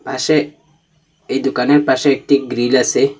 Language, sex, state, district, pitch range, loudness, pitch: Bengali, male, Assam, Hailakandi, 130-155 Hz, -15 LUFS, 140 Hz